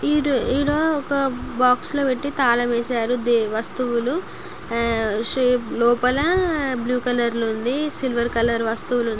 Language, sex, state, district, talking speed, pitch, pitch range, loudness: Telugu, female, Andhra Pradesh, Guntur, 110 wpm, 250 Hz, 235-275 Hz, -21 LUFS